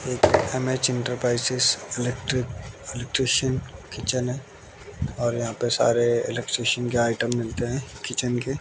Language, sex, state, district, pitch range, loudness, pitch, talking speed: Hindi, male, Bihar, West Champaran, 120-130 Hz, -24 LUFS, 125 Hz, 125 wpm